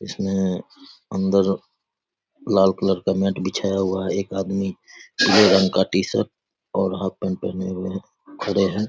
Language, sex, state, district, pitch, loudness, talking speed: Hindi, male, Bihar, Saharsa, 95 Hz, -21 LUFS, 150 wpm